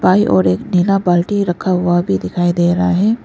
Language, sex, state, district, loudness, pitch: Hindi, female, Arunachal Pradesh, Lower Dibang Valley, -15 LUFS, 175 Hz